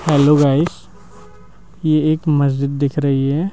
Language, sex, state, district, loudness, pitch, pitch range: Hindi, male, Madhya Pradesh, Bhopal, -16 LUFS, 140 Hz, 135-155 Hz